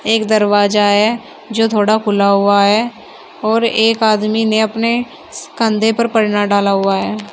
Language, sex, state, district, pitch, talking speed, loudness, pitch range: Hindi, female, Uttar Pradesh, Shamli, 215 Hz, 155 wpm, -14 LUFS, 205-225 Hz